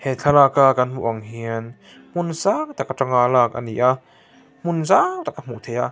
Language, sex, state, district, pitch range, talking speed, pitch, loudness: Mizo, male, Mizoram, Aizawl, 125-170 Hz, 235 wpm, 135 Hz, -20 LUFS